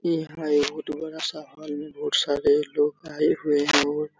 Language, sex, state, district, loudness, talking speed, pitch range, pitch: Hindi, male, Bihar, Supaul, -24 LUFS, 200 wpm, 150-160 Hz, 155 Hz